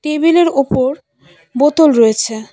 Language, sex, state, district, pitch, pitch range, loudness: Bengali, female, West Bengal, Cooch Behar, 275 Hz, 230-310 Hz, -12 LUFS